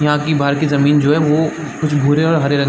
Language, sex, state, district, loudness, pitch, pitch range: Hindi, male, Chhattisgarh, Bastar, -15 LUFS, 150 Hz, 145-155 Hz